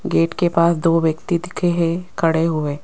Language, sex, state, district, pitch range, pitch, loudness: Hindi, female, Rajasthan, Jaipur, 160-175 Hz, 165 Hz, -19 LUFS